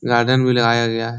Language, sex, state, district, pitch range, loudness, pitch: Hindi, male, Bihar, Supaul, 115-120 Hz, -16 LUFS, 120 Hz